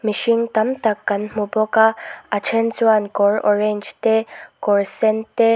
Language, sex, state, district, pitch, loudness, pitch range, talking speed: Mizo, female, Mizoram, Aizawl, 220 Hz, -19 LUFS, 210-225 Hz, 170 wpm